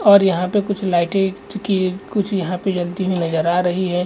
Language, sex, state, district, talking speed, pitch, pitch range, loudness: Hindi, male, Chhattisgarh, Rajnandgaon, 235 wpm, 185 Hz, 180-195 Hz, -19 LUFS